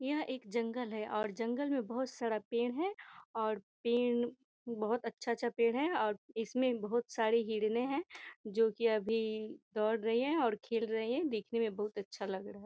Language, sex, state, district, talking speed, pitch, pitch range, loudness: Hindi, female, Bihar, Gopalganj, 190 wpm, 230 Hz, 220-245 Hz, -36 LUFS